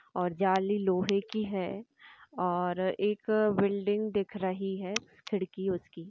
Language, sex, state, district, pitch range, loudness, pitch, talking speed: Hindi, female, Bihar, Jamui, 185-205 Hz, -31 LUFS, 195 Hz, 130 wpm